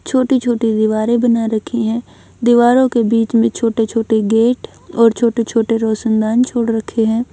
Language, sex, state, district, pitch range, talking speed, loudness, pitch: Hindi, female, Haryana, Jhajjar, 225-240 Hz, 165 wpm, -15 LUFS, 230 Hz